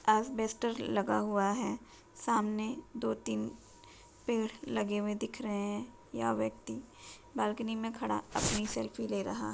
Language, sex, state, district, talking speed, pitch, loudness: Hindi, female, Uttar Pradesh, Jalaun, 130 wpm, 210 Hz, -35 LUFS